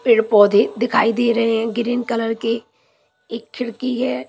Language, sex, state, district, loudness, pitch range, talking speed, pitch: Hindi, female, Punjab, Pathankot, -18 LUFS, 225-240 Hz, 180 wpm, 230 Hz